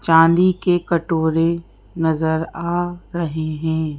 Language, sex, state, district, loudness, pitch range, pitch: Hindi, female, Madhya Pradesh, Bhopal, -19 LUFS, 160-175 Hz, 165 Hz